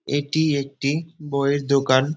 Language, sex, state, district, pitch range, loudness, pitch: Bengali, male, West Bengal, Dakshin Dinajpur, 140-150 Hz, -22 LUFS, 140 Hz